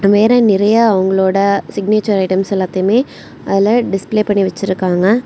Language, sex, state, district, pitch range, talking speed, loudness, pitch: Tamil, female, Tamil Nadu, Kanyakumari, 190-215 Hz, 115 wpm, -13 LUFS, 200 Hz